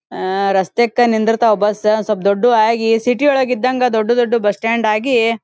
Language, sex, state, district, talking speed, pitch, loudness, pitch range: Kannada, female, Karnataka, Dharwad, 165 wpm, 225 Hz, -15 LUFS, 215-240 Hz